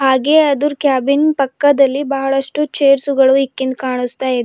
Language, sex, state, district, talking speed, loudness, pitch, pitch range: Kannada, female, Karnataka, Bidar, 135 wpm, -14 LUFS, 275 Hz, 265-285 Hz